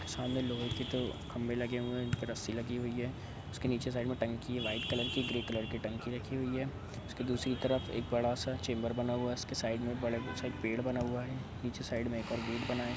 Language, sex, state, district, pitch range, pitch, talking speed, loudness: Hindi, male, Bihar, Saran, 115-125 Hz, 120 Hz, 255 wpm, -37 LUFS